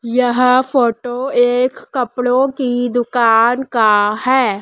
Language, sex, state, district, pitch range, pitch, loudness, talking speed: Hindi, female, Madhya Pradesh, Dhar, 235-255 Hz, 245 Hz, -15 LUFS, 105 wpm